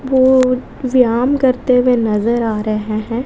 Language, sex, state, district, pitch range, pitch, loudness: Hindi, female, Bihar, West Champaran, 225-260 Hz, 250 Hz, -15 LUFS